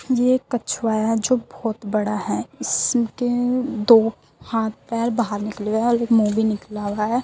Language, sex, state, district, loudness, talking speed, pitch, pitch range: Hindi, female, Uttar Pradesh, Muzaffarnagar, -21 LUFS, 190 wpm, 225 Hz, 215-245 Hz